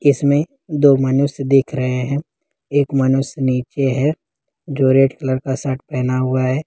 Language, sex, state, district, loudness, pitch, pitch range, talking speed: Hindi, male, Jharkhand, Ranchi, -17 LUFS, 135 Hz, 130-145 Hz, 160 wpm